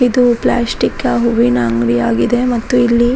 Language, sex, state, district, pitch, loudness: Kannada, female, Karnataka, Raichur, 235 Hz, -14 LUFS